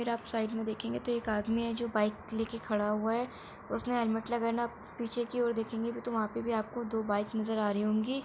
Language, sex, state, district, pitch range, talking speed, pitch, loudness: Hindi, female, Uttar Pradesh, Etah, 220-235 Hz, 230 wpm, 230 Hz, -33 LUFS